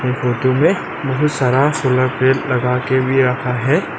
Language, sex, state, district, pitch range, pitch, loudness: Hindi, male, Arunachal Pradesh, Lower Dibang Valley, 125-140 Hz, 130 Hz, -16 LUFS